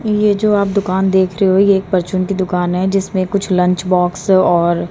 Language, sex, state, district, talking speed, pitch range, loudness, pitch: Hindi, female, Haryana, Charkhi Dadri, 220 wpm, 180-195 Hz, -14 LUFS, 190 Hz